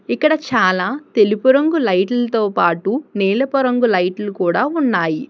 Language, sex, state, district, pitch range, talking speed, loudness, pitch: Telugu, female, Telangana, Hyderabad, 185-270 Hz, 125 wpm, -16 LUFS, 230 Hz